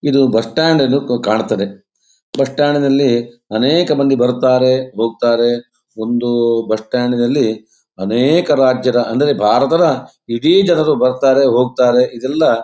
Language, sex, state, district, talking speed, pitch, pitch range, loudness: Kannada, male, Karnataka, Dakshina Kannada, 100 wpm, 125 Hz, 115-135 Hz, -14 LUFS